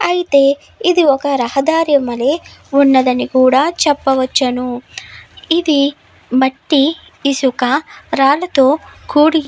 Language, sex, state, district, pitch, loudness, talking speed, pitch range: Telugu, female, Andhra Pradesh, Guntur, 280 Hz, -14 LUFS, 90 wpm, 260-305 Hz